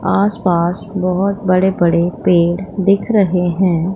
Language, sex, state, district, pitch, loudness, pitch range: Hindi, female, Punjab, Pathankot, 185 Hz, -15 LUFS, 175-195 Hz